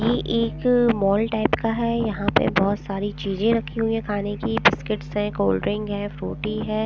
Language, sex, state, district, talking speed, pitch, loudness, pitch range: Hindi, female, Punjab, Pathankot, 210 wpm, 210 Hz, -23 LUFS, 200-225 Hz